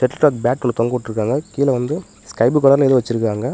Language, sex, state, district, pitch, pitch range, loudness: Tamil, male, Tamil Nadu, Namakkal, 125 Hz, 115-135 Hz, -17 LUFS